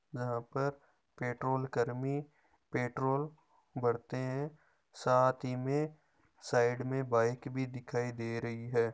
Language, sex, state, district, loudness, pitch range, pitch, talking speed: Marwari, male, Rajasthan, Nagaur, -35 LUFS, 120-140 Hz, 130 Hz, 105 wpm